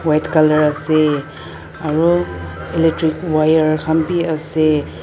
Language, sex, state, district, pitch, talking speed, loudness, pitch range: Nagamese, female, Nagaland, Dimapur, 155 Hz, 105 wpm, -16 LUFS, 150-160 Hz